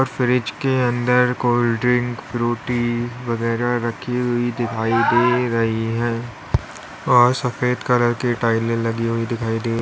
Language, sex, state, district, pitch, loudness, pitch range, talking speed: Hindi, male, Uttar Pradesh, Lalitpur, 120 Hz, -20 LUFS, 115-125 Hz, 135 wpm